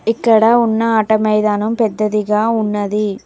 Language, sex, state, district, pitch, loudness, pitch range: Telugu, female, Telangana, Mahabubabad, 215 Hz, -14 LUFS, 210-225 Hz